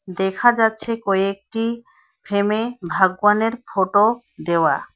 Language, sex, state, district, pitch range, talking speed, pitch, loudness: Bengali, female, West Bengal, Alipurduar, 190-230 Hz, 85 wpm, 210 Hz, -20 LUFS